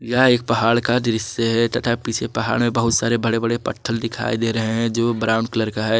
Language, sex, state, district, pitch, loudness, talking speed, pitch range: Hindi, male, Jharkhand, Garhwa, 115 Hz, -20 LUFS, 240 wpm, 115-120 Hz